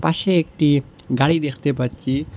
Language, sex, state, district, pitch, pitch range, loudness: Bengali, male, Assam, Hailakandi, 145 Hz, 135-160 Hz, -20 LUFS